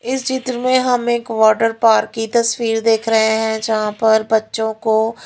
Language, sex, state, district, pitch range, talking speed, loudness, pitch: Hindi, female, Haryana, Rohtak, 220-235 Hz, 180 wpm, -16 LUFS, 225 Hz